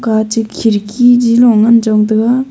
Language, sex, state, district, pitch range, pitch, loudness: Wancho, female, Arunachal Pradesh, Longding, 215-240 Hz, 225 Hz, -10 LUFS